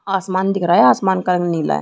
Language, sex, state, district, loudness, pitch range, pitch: Hindi, female, Chhattisgarh, Rajnandgaon, -16 LUFS, 180-195 Hz, 185 Hz